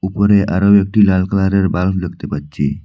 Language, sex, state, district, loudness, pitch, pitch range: Bengali, male, Assam, Hailakandi, -14 LUFS, 95 Hz, 90-100 Hz